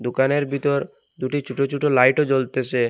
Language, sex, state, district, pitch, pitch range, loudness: Bengali, male, Assam, Hailakandi, 135 Hz, 130-140 Hz, -21 LUFS